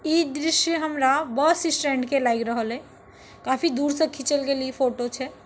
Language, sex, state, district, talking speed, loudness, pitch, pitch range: Maithili, female, Bihar, Darbhanga, 155 wpm, -23 LUFS, 280 Hz, 260-315 Hz